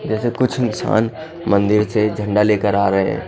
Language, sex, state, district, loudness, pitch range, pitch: Hindi, male, Bihar, Katihar, -18 LUFS, 105-120 Hz, 105 Hz